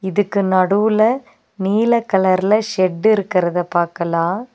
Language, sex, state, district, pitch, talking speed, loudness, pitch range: Tamil, female, Tamil Nadu, Nilgiris, 195 Hz, 90 wpm, -17 LUFS, 185-215 Hz